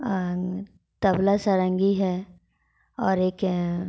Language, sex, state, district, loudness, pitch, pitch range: Hindi, female, Jharkhand, Sahebganj, -24 LUFS, 190 Hz, 185-195 Hz